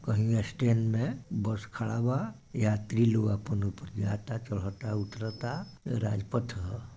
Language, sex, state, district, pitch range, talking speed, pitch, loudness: Bhojpuri, male, Bihar, Gopalganj, 105-120 Hz, 130 wpm, 110 Hz, -32 LUFS